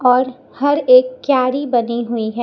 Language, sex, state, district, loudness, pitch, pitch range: Hindi, female, Chhattisgarh, Raipur, -16 LUFS, 255 Hz, 240-285 Hz